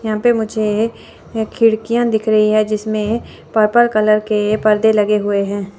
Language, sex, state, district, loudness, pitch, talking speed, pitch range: Hindi, female, Chandigarh, Chandigarh, -15 LUFS, 215 Hz, 155 wpm, 210-220 Hz